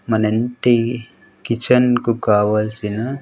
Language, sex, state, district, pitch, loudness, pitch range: Telugu, male, Andhra Pradesh, Sri Satya Sai, 115 Hz, -18 LUFS, 110-120 Hz